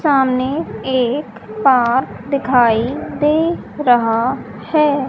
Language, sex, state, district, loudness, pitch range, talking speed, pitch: Hindi, male, Haryana, Charkhi Dadri, -16 LUFS, 235-285 Hz, 85 wpm, 260 Hz